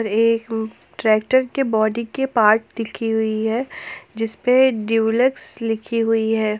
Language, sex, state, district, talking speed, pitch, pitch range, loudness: Hindi, female, Jharkhand, Ranchi, 135 wpm, 225 Hz, 220-235 Hz, -19 LUFS